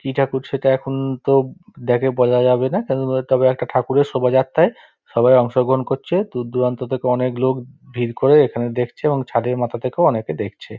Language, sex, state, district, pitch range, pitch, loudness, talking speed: Bengali, male, West Bengal, Dakshin Dinajpur, 125-135 Hz, 130 Hz, -18 LUFS, 180 wpm